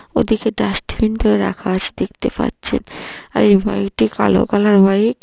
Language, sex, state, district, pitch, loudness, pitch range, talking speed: Bengali, female, West Bengal, North 24 Parganas, 205 Hz, -16 LUFS, 190-220 Hz, 170 wpm